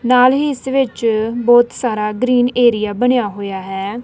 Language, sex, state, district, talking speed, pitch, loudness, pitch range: Punjabi, female, Punjab, Kapurthala, 165 wpm, 240 Hz, -15 LUFS, 215-250 Hz